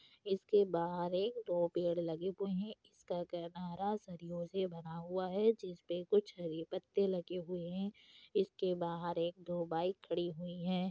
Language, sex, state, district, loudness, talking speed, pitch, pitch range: Hindi, female, Uttar Pradesh, Deoria, -38 LUFS, 170 wpm, 180 Hz, 170-195 Hz